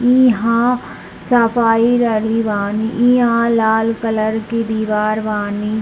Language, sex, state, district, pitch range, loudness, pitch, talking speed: Hindi, female, Bihar, East Champaran, 215-235 Hz, -15 LUFS, 225 Hz, 105 wpm